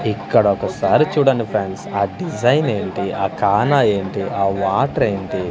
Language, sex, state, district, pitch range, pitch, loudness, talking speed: Telugu, male, Andhra Pradesh, Manyam, 95-140 Hz, 100 Hz, -18 LUFS, 130 wpm